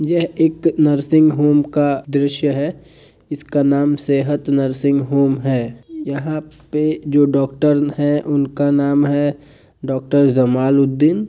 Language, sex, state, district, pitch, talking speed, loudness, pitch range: Hindi, male, Bihar, Kishanganj, 145 Hz, 120 wpm, -17 LUFS, 140-150 Hz